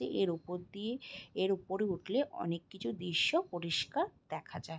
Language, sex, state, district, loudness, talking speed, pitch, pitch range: Bengali, female, West Bengal, Jalpaiguri, -36 LUFS, 150 wpm, 180 Hz, 165-195 Hz